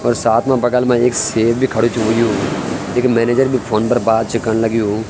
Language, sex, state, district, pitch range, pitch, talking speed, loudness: Garhwali, male, Uttarakhand, Tehri Garhwal, 110-120 Hz, 115 Hz, 235 wpm, -15 LUFS